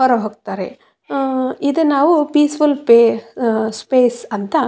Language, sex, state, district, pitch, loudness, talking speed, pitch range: Kannada, female, Karnataka, Raichur, 255 Hz, -16 LUFS, 140 wpm, 225-285 Hz